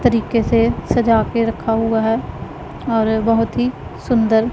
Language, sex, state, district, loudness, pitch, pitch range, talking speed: Hindi, female, Punjab, Pathankot, -17 LUFS, 230 Hz, 225-235 Hz, 145 wpm